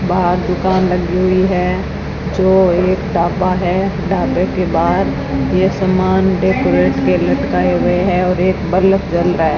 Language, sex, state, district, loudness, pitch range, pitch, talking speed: Hindi, female, Rajasthan, Bikaner, -14 LUFS, 175-190 Hz, 185 Hz, 155 wpm